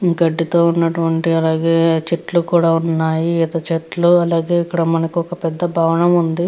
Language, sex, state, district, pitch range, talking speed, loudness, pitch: Telugu, female, Andhra Pradesh, Guntur, 165-170 Hz, 140 wpm, -16 LUFS, 165 Hz